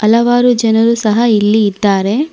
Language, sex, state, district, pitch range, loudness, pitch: Kannada, female, Karnataka, Bangalore, 210-235 Hz, -11 LUFS, 225 Hz